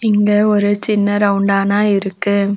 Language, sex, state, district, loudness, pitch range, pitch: Tamil, female, Tamil Nadu, Nilgiris, -15 LUFS, 200-210 Hz, 205 Hz